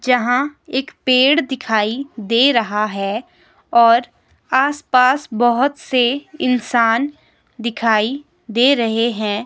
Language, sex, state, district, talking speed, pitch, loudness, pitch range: Hindi, female, Himachal Pradesh, Shimla, 110 wpm, 250 Hz, -17 LUFS, 230-270 Hz